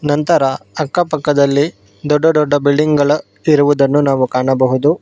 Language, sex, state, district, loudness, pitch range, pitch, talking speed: Kannada, male, Karnataka, Bangalore, -14 LUFS, 140-150 Hz, 145 Hz, 120 wpm